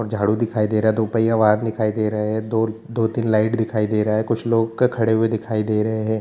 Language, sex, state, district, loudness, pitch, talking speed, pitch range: Hindi, male, Bihar, Jamui, -20 LUFS, 110 Hz, 280 wpm, 110-115 Hz